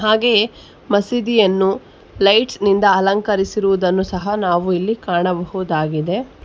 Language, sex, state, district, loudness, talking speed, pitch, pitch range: Kannada, female, Karnataka, Bangalore, -17 LUFS, 85 wpm, 195 Hz, 185-215 Hz